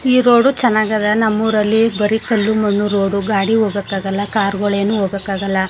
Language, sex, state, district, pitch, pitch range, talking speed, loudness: Kannada, female, Karnataka, Mysore, 210 Hz, 200-220 Hz, 145 wpm, -16 LUFS